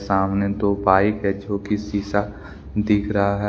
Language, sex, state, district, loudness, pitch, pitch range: Hindi, male, Jharkhand, Deoghar, -21 LUFS, 100 Hz, 100-105 Hz